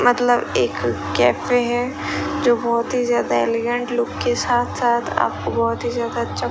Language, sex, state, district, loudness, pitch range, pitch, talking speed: Hindi, female, Rajasthan, Bikaner, -20 LUFS, 230-245 Hz, 240 Hz, 175 wpm